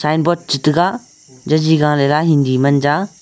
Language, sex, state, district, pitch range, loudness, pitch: Wancho, male, Arunachal Pradesh, Longding, 140-165 Hz, -15 LUFS, 150 Hz